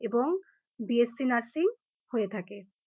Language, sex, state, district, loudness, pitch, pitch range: Bengali, female, West Bengal, North 24 Parganas, -30 LUFS, 240 Hz, 220-355 Hz